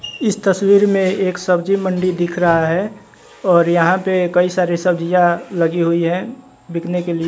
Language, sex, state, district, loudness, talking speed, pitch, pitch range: Hindi, male, Bihar, West Champaran, -16 LUFS, 175 wpm, 180 Hz, 170-190 Hz